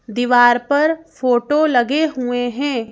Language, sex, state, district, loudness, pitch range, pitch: Hindi, female, Madhya Pradesh, Bhopal, -16 LUFS, 245-295 Hz, 250 Hz